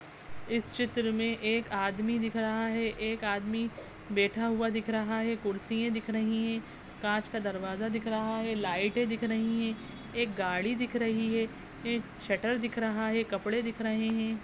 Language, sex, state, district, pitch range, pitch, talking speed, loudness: Hindi, female, Uttarakhand, Tehri Garhwal, 220-230 Hz, 225 Hz, 180 wpm, -32 LUFS